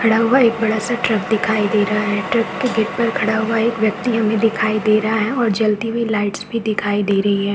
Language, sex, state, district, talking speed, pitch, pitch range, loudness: Hindi, male, Chhattisgarh, Balrampur, 260 wpm, 220 Hz, 210-230 Hz, -17 LUFS